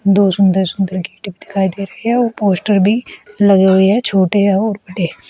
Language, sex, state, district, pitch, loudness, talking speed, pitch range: Hindi, female, Uttar Pradesh, Shamli, 200 Hz, -14 LUFS, 195 wpm, 190-210 Hz